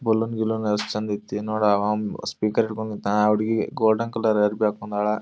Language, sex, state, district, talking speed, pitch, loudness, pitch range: Kannada, male, Karnataka, Dharwad, 185 wpm, 105 Hz, -23 LUFS, 105-110 Hz